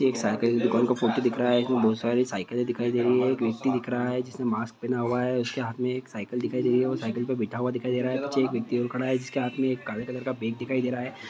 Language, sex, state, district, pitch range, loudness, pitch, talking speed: Hindi, male, Bihar, Jahanabad, 120-125 Hz, -27 LUFS, 125 Hz, 335 wpm